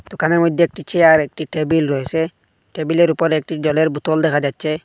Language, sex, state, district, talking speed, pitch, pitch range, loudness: Bengali, male, Assam, Hailakandi, 175 wpm, 160 Hz, 155-165 Hz, -17 LUFS